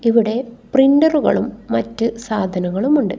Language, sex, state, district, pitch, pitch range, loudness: Malayalam, female, Kerala, Kasaragod, 230 Hz, 195-270 Hz, -17 LUFS